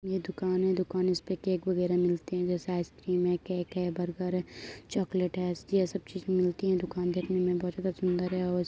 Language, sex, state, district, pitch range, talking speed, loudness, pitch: Hindi, female, Uttar Pradesh, Gorakhpur, 180-185 Hz, 235 wpm, -31 LUFS, 180 Hz